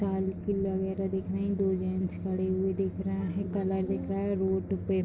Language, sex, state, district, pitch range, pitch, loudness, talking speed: Hindi, female, Uttar Pradesh, Deoria, 190-195 Hz, 190 Hz, -31 LUFS, 165 wpm